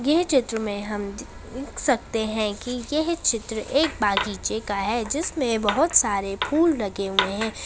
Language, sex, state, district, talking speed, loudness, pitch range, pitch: Hindi, female, Bihar, Saharsa, 170 wpm, -23 LUFS, 205-290 Hz, 225 Hz